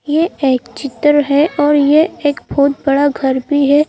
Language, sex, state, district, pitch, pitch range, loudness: Hindi, female, Madhya Pradesh, Bhopal, 290 Hz, 280-295 Hz, -13 LUFS